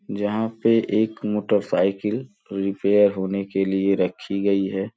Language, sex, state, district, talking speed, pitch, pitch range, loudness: Hindi, male, Uttar Pradesh, Gorakhpur, 130 wpm, 100 Hz, 95-105 Hz, -22 LUFS